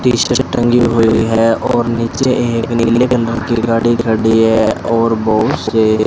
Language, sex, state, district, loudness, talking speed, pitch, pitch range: Hindi, male, Rajasthan, Bikaner, -13 LUFS, 160 wpm, 115 Hz, 115-120 Hz